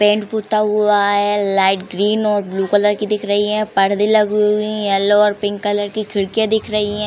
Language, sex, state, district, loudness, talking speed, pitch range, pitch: Hindi, female, Uttar Pradesh, Jalaun, -16 LUFS, 220 wpm, 205-210 Hz, 210 Hz